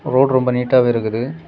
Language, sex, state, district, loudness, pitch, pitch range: Tamil, male, Tamil Nadu, Kanyakumari, -16 LUFS, 130 Hz, 120-135 Hz